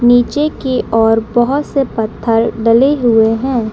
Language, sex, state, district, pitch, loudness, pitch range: Hindi, female, Bihar, Madhepura, 235 Hz, -13 LUFS, 225-265 Hz